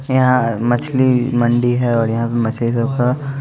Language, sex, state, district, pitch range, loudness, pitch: Hindi, male, Bihar, West Champaran, 115-130 Hz, -16 LUFS, 120 Hz